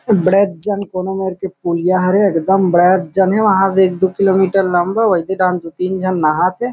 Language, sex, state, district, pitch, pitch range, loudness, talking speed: Chhattisgarhi, male, Chhattisgarh, Kabirdham, 190 Hz, 180-195 Hz, -14 LUFS, 215 wpm